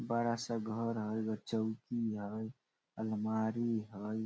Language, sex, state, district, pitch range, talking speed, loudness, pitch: Maithili, male, Bihar, Samastipur, 110-115 Hz, 100 wpm, -38 LUFS, 110 Hz